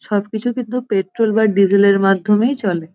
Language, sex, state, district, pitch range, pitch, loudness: Bengali, female, West Bengal, North 24 Parganas, 195-230 Hz, 210 Hz, -16 LUFS